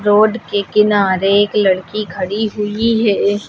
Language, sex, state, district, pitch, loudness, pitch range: Hindi, female, Uttar Pradesh, Lucknow, 210 Hz, -15 LUFS, 200-215 Hz